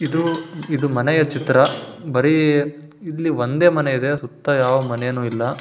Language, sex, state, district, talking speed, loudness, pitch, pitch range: Kannada, male, Karnataka, Shimoga, 140 wpm, -19 LUFS, 145 Hz, 130-155 Hz